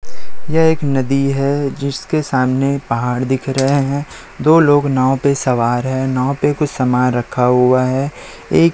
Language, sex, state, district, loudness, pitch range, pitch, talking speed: Hindi, male, Chhattisgarh, Raipur, -15 LUFS, 130-145 Hz, 135 Hz, 165 wpm